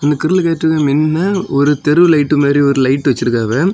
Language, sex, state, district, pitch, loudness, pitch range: Tamil, male, Tamil Nadu, Kanyakumari, 150 Hz, -13 LUFS, 140-165 Hz